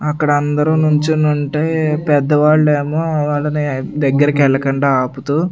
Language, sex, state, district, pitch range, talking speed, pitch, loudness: Telugu, male, Andhra Pradesh, Sri Satya Sai, 145-155 Hz, 85 wpm, 150 Hz, -15 LUFS